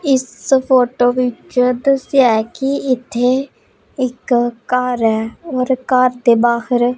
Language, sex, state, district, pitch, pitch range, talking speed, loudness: Punjabi, female, Punjab, Pathankot, 250 Hz, 240-260 Hz, 130 wpm, -16 LUFS